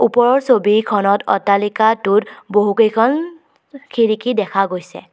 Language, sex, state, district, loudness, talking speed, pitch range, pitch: Assamese, female, Assam, Kamrup Metropolitan, -15 LUFS, 80 wpm, 205-245 Hz, 220 Hz